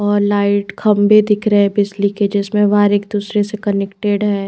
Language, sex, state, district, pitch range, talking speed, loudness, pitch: Hindi, female, Chandigarh, Chandigarh, 200-210 Hz, 200 wpm, -15 LUFS, 205 Hz